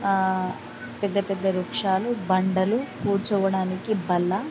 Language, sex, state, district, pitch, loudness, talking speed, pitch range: Telugu, female, Andhra Pradesh, Krishna, 190 Hz, -25 LUFS, 95 wpm, 185-200 Hz